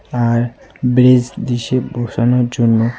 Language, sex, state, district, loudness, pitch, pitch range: Bengali, male, West Bengal, Alipurduar, -15 LUFS, 120 Hz, 120-125 Hz